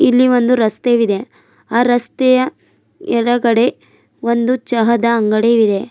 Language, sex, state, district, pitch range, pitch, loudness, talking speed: Kannada, female, Karnataka, Bidar, 230-250 Hz, 235 Hz, -14 LUFS, 110 wpm